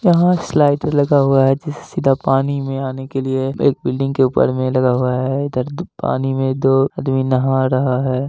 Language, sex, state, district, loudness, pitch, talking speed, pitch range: Hindi, male, Bihar, Gaya, -17 LUFS, 135 Hz, 210 wpm, 130-140 Hz